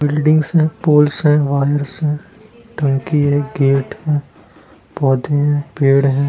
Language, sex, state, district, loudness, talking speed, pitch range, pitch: Hindi, male, Jharkhand, Sahebganj, -16 LUFS, 135 wpm, 140-150 Hz, 145 Hz